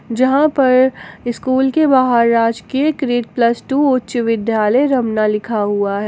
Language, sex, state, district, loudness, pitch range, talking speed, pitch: Hindi, female, Jharkhand, Garhwa, -15 LUFS, 225-265 Hz, 150 wpm, 245 Hz